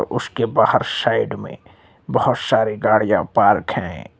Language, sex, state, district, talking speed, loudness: Hindi, male, Uttar Pradesh, Lucknow, 130 wpm, -18 LUFS